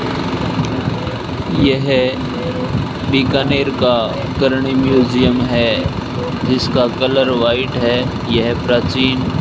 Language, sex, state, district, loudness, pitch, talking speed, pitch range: Hindi, male, Rajasthan, Bikaner, -16 LUFS, 130 Hz, 85 wpm, 120-135 Hz